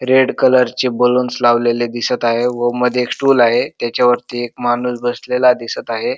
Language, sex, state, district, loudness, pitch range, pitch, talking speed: Marathi, male, Maharashtra, Dhule, -15 LUFS, 120-125 Hz, 125 Hz, 195 wpm